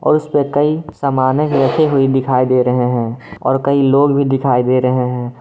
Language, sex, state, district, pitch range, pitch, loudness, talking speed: Hindi, male, Jharkhand, Garhwa, 125-140 Hz, 135 Hz, -14 LUFS, 220 wpm